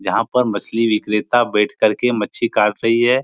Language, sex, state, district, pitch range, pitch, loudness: Hindi, male, Bihar, Supaul, 105-120 Hz, 115 Hz, -17 LUFS